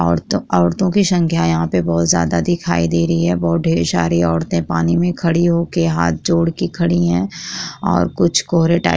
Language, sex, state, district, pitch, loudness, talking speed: Hindi, female, Chhattisgarh, Korba, 85 Hz, -16 LUFS, 195 wpm